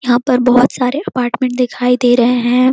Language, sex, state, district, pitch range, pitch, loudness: Hindi, female, Chhattisgarh, Korba, 245-255 Hz, 250 Hz, -13 LUFS